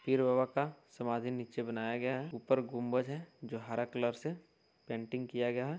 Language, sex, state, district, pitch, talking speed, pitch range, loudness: Hindi, male, Uttar Pradesh, Varanasi, 125 Hz, 195 wpm, 120-135 Hz, -37 LUFS